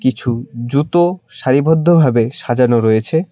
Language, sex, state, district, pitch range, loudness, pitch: Bengali, male, West Bengal, Cooch Behar, 120-160 Hz, -14 LUFS, 130 Hz